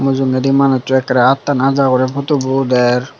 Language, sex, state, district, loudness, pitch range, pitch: Chakma, male, Tripura, Dhalai, -14 LUFS, 130-135 Hz, 135 Hz